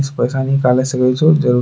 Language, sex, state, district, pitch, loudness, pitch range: Angika, male, Bihar, Bhagalpur, 130 Hz, -14 LUFS, 125-140 Hz